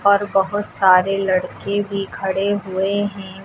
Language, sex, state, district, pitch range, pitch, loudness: Hindi, female, Uttar Pradesh, Lucknow, 190-200 Hz, 195 Hz, -19 LUFS